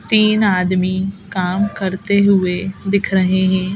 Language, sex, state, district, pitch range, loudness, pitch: Hindi, female, Madhya Pradesh, Bhopal, 185-200 Hz, -16 LUFS, 190 Hz